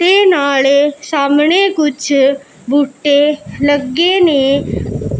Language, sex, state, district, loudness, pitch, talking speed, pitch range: Punjabi, female, Punjab, Pathankot, -12 LUFS, 290 Hz, 80 wpm, 280-310 Hz